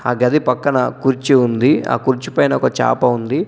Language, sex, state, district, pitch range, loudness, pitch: Telugu, male, Telangana, Adilabad, 125-135 Hz, -16 LUFS, 125 Hz